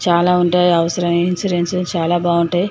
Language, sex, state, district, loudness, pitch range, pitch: Telugu, female, Andhra Pradesh, Chittoor, -16 LUFS, 170-180 Hz, 175 Hz